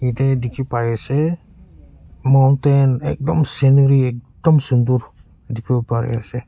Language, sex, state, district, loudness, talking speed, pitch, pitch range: Nagamese, male, Nagaland, Kohima, -17 LUFS, 110 wpm, 125 Hz, 115-135 Hz